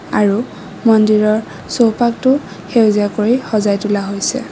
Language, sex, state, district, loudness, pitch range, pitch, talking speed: Assamese, female, Assam, Kamrup Metropolitan, -15 LUFS, 205-230 Hz, 215 Hz, 105 wpm